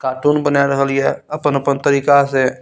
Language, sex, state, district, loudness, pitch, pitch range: Maithili, male, Bihar, Saharsa, -15 LUFS, 140 Hz, 135-145 Hz